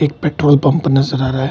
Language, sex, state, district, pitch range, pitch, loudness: Hindi, male, Bihar, Kishanganj, 135-150 Hz, 140 Hz, -14 LUFS